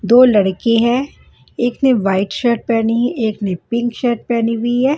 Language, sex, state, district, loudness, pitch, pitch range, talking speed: Hindi, female, Punjab, Kapurthala, -16 LUFS, 235 Hz, 225-245 Hz, 190 wpm